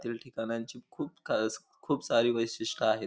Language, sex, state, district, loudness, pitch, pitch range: Marathi, male, Maharashtra, Pune, -32 LUFS, 115 Hz, 115-120 Hz